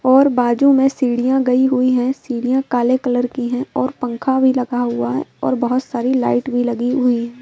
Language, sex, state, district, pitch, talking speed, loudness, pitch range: Hindi, female, Madhya Pradesh, Bhopal, 250 Hz, 210 wpm, -17 LUFS, 245-260 Hz